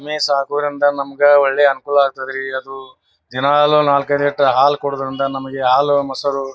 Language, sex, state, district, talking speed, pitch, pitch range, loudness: Kannada, male, Karnataka, Bijapur, 155 wpm, 140 Hz, 135-145 Hz, -16 LUFS